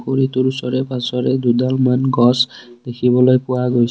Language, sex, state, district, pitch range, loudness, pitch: Assamese, male, Assam, Kamrup Metropolitan, 125-130 Hz, -16 LUFS, 125 Hz